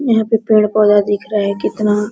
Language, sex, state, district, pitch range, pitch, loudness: Hindi, female, Bihar, Araria, 205-215 Hz, 210 Hz, -14 LUFS